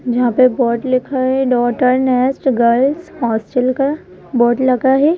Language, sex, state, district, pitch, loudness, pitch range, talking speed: Hindi, female, Madhya Pradesh, Bhopal, 255 Hz, -15 LUFS, 245-265 Hz, 150 wpm